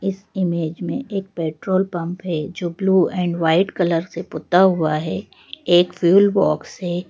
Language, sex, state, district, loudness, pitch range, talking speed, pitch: Hindi, female, Madhya Pradesh, Bhopal, -20 LUFS, 170-190 Hz, 170 wpm, 180 Hz